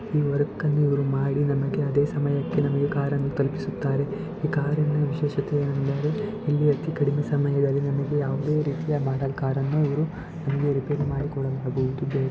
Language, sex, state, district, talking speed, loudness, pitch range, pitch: Kannada, male, Karnataka, Shimoga, 145 wpm, -25 LUFS, 140-150 Hz, 145 Hz